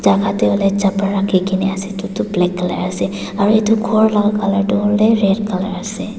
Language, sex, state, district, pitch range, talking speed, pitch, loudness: Nagamese, female, Nagaland, Dimapur, 195-210 Hz, 185 wpm, 200 Hz, -16 LUFS